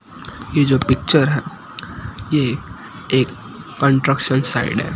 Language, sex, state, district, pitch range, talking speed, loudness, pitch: Hindi, male, Gujarat, Gandhinagar, 125-140 Hz, 95 wpm, -17 LUFS, 135 Hz